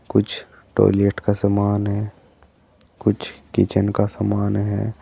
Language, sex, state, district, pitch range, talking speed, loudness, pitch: Hindi, male, Uttar Pradesh, Saharanpur, 100-105 Hz, 120 wpm, -21 LUFS, 100 Hz